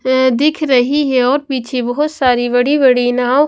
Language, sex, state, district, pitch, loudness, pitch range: Hindi, female, Maharashtra, Washim, 260 Hz, -14 LUFS, 250-285 Hz